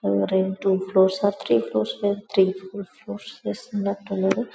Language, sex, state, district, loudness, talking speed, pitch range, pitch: Telugu, male, Telangana, Karimnagar, -23 LUFS, 80 wpm, 155-200 Hz, 190 Hz